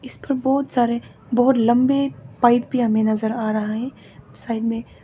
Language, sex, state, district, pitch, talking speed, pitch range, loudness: Hindi, female, Arunachal Pradesh, Papum Pare, 240 Hz, 180 wpm, 225-260 Hz, -20 LUFS